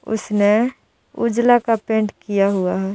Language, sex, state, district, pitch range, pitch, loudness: Hindi, female, Bihar, Jahanabad, 200-230 Hz, 215 Hz, -18 LUFS